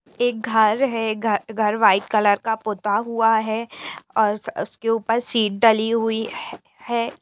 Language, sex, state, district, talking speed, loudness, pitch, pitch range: Hindi, female, Bihar, Saran, 140 wpm, -21 LUFS, 225 Hz, 215-230 Hz